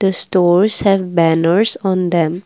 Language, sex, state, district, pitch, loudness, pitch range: English, female, Assam, Kamrup Metropolitan, 185 Hz, -13 LUFS, 170-195 Hz